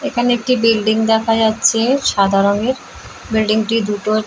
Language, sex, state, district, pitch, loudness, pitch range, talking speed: Bengali, female, West Bengal, Jalpaiguri, 225 Hz, -15 LUFS, 215-240 Hz, 170 wpm